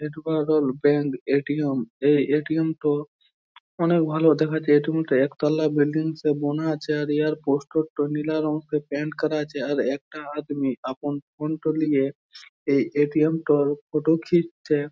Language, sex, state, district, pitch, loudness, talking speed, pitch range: Bengali, male, West Bengal, Jhargram, 150 Hz, -24 LUFS, 150 wpm, 145-155 Hz